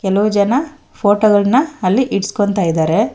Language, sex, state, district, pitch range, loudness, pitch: Kannada, female, Karnataka, Bangalore, 200-240 Hz, -15 LUFS, 205 Hz